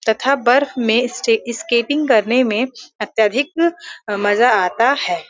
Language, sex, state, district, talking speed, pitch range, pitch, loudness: Hindi, female, Uttar Pradesh, Varanasi, 135 wpm, 220-270 Hz, 240 Hz, -16 LUFS